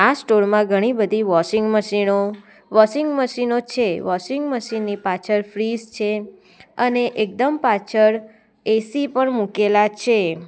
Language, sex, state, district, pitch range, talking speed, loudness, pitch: Gujarati, female, Gujarat, Valsad, 205-240 Hz, 115 wpm, -19 LUFS, 215 Hz